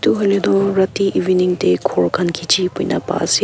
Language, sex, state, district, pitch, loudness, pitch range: Nagamese, female, Nagaland, Kohima, 185 Hz, -16 LUFS, 170-195 Hz